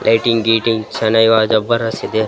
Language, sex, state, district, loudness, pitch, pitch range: Kannada, male, Karnataka, Raichur, -14 LUFS, 115 Hz, 110-115 Hz